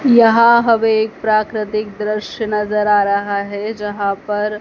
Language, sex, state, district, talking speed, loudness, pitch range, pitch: Hindi, female, Madhya Pradesh, Dhar, 145 wpm, -16 LUFS, 205-220 Hz, 210 Hz